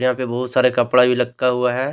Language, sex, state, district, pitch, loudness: Hindi, male, Jharkhand, Deoghar, 125 Hz, -18 LUFS